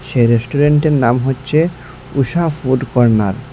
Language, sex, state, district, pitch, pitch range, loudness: Bengali, male, Assam, Hailakandi, 130 Hz, 125-150 Hz, -14 LUFS